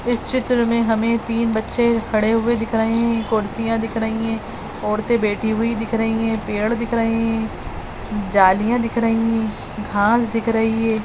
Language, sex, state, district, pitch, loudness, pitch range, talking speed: Hindi, female, Uttarakhand, Tehri Garhwal, 225 Hz, -20 LUFS, 220-230 Hz, 170 wpm